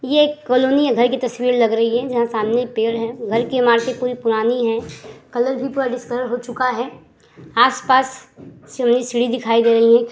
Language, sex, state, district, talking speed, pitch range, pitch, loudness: Hindi, female, Uttar Pradesh, Hamirpur, 205 wpm, 230-255 Hz, 245 Hz, -18 LUFS